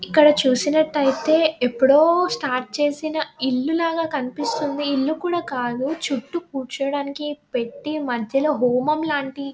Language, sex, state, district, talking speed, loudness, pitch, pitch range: Telugu, female, Telangana, Nalgonda, 115 wpm, -21 LUFS, 290 Hz, 265-310 Hz